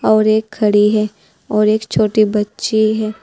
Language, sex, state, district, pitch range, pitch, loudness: Hindi, female, Uttar Pradesh, Saharanpur, 210-215 Hz, 215 Hz, -15 LUFS